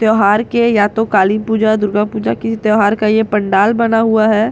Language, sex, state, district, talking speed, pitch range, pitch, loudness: Hindi, female, Bihar, Katihar, 225 wpm, 210-225 Hz, 215 Hz, -13 LUFS